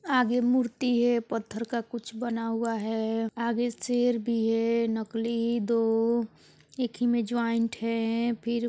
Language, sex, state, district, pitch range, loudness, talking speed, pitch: Hindi, female, Uttar Pradesh, Ghazipur, 225-240 Hz, -28 LUFS, 150 wpm, 235 Hz